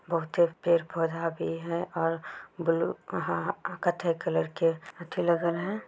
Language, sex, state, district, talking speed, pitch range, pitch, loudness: Chhattisgarhi, female, Chhattisgarh, Bilaspur, 155 wpm, 165-175 Hz, 170 Hz, -29 LUFS